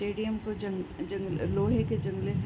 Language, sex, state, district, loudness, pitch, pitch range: Hindi, female, Uttarakhand, Tehri Garhwal, -31 LUFS, 205 Hz, 190-215 Hz